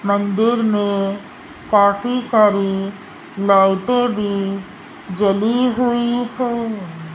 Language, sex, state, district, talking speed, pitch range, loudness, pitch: Hindi, female, Rajasthan, Jaipur, 75 wpm, 195-240 Hz, -17 LUFS, 205 Hz